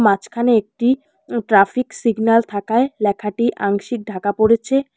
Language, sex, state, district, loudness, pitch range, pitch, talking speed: Bengali, female, West Bengal, Alipurduar, -18 LUFS, 205-240 Hz, 225 Hz, 120 wpm